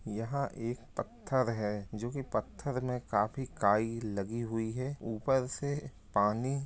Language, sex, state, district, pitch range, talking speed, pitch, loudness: Hindi, male, Bihar, Lakhisarai, 110-135 Hz, 155 wpm, 115 Hz, -34 LUFS